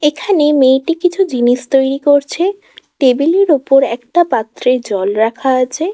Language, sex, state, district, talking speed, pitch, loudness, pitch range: Bengali, female, West Bengal, Kolkata, 140 wpm, 270 Hz, -13 LUFS, 255-335 Hz